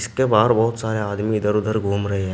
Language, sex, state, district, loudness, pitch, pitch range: Hindi, male, Uttar Pradesh, Shamli, -20 LUFS, 105 Hz, 100-110 Hz